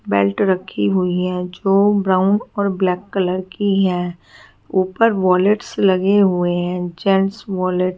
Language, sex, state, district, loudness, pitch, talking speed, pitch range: Hindi, female, Haryana, Charkhi Dadri, -18 LUFS, 185 Hz, 145 wpm, 180-195 Hz